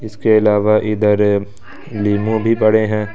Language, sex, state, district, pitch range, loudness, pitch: Hindi, male, Delhi, New Delhi, 105-110 Hz, -15 LUFS, 105 Hz